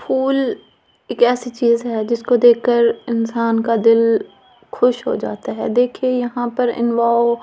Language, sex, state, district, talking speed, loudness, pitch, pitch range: Hindi, female, Delhi, New Delhi, 170 wpm, -17 LUFS, 235 Hz, 235-245 Hz